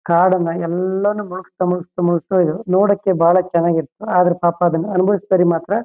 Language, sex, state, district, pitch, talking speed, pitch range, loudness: Kannada, male, Karnataka, Shimoga, 180 Hz, 145 wpm, 170-190 Hz, -17 LUFS